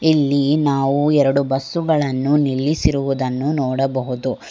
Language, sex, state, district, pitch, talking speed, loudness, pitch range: Kannada, female, Karnataka, Bangalore, 140 Hz, 80 wpm, -18 LUFS, 135-145 Hz